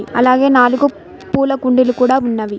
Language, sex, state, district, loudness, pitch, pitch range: Telugu, female, Telangana, Mahabubabad, -13 LUFS, 255 Hz, 245-275 Hz